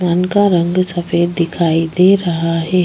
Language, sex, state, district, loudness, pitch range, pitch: Hindi, female, Chhattisgarh, Bastar, -14 LUFS, 170-185 Hz, 175 Hz